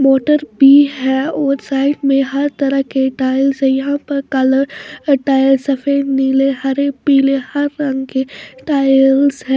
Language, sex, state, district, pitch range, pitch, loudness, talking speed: Hindi, female, Maharashtra, Washim, 265-280 Hz, 275 Hz, -14 LUFS, 150 wpm